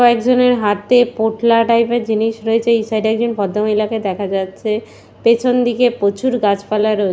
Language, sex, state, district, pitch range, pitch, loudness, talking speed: Bengali, female, West Bengal, Purulia, 210-240 Hz, 225 Hz, -16 LUFS, 150 wpm